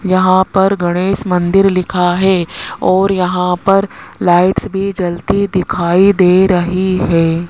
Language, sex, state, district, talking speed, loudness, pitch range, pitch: Hindi, male, Rajasthan, Jaipur, 130 wpm, -13 LUFS, 180-195 Hz, 185 Hz